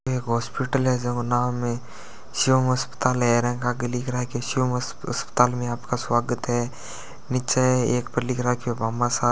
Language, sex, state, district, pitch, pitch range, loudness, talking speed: Hindi, male, Rajasthan, Churu, 125 Hz, 120-125 Hz, -24 LUFS, 160 wpm